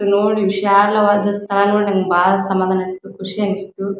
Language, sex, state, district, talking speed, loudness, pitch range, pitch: Kannada, female, Karnataka, Dharwad, 120 wpm, -16 LUFS, 195-205 Hz, 200 Hz